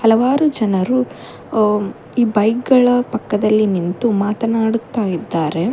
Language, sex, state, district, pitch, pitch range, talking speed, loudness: Kannada, female, Karnataka, Bangalore, 225 Hz, 205-245 Hz, 105 wpm, -17 LUFS